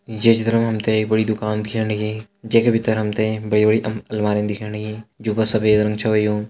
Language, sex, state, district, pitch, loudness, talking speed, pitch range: Hindi, male, Uttarakhand, Tehri Garhwal, 110 Hz, -19 LUFS, 205 wpm, 105-110 Hz